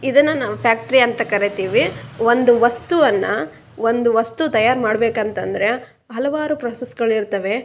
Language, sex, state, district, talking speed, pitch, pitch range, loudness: Kannada, female, Karnataka, Raichur, 125 wpm, 235 Hz, 220-255 Hz, -18 LUFS